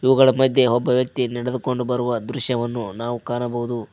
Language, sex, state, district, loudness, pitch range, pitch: Kannada, male, Karnataka, Koppal, -21 LUFS, 120-130 Hz, 125 Hz